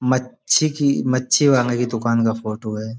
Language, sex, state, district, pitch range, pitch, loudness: Hindi, male, Uttar Pradesh, Budaun, 115-130 Hz, 120 Hz, -19 LUFS